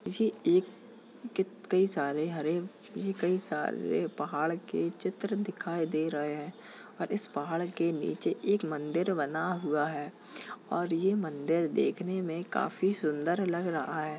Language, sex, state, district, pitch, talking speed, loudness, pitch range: Hindi, male, Uttar Pradesh, Jalaun, 170 Hz, 150 wpm, -32 LUFS, 155-190 Hz